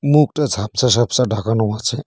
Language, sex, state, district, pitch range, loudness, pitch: Bengali, male, West Bengal, Cooch Behar, 110-140 Hz, -17 LUFS, 120 Hz